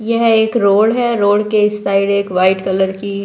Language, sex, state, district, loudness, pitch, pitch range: Hindi, female, Delhi, New Delhi, -14 LUFS, 205 Hz, 195-220 Hz